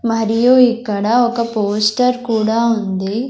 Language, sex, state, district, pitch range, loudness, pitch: Telugu, female, Andhra Pradesh, Sri Satya Sai, 215-240 Hz, -15 LUFS, 225 Hz